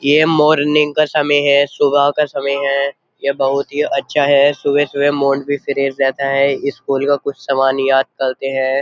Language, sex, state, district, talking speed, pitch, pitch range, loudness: Hindi, male, Uttar Pradesh, Jyotiba Phule Nagar, 185 wpm, 140 Hz, 135-145 Hz, -15 LUFS